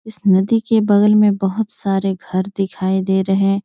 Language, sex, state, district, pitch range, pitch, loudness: Hindi, female, Uttar Pradesh, Etah, 190-210 Hz, 195 Hz, -16 LUFS